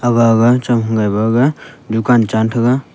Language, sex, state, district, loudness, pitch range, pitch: Wancho, male, Arunachal Pradesh, Longding, -14 LUFS, 110-125 Hz, 115 Hz